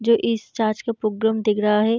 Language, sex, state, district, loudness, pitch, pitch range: Hindi, female, Bihar, Darbhanga, -21 LUFS, 220 Hz, 215-230 Hz